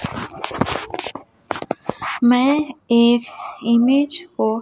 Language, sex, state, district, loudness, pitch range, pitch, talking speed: Hindi, male, Chhattisgarh, Raipur, -19 LUFS, 235-300 Hz, 255 Hz, 50 wpm